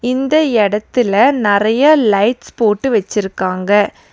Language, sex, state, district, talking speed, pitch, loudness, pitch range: Tamil, female, Tamil Nadu, Nilgiris, 85 wpm, 215 Hz, -14 LUFS, 205-255 Hz